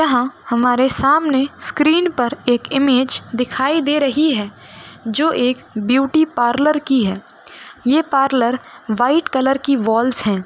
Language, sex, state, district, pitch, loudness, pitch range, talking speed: Hindi, female, Bihar, Gopalganj, 260 Hz, -16 LUFS, 240-290 Hz, 140 wpm